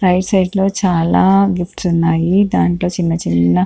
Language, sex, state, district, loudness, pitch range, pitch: Telugu, female, Andhra Pradesh, Chittoor, -14 LUFS, 165-190 Hz, 180 Hz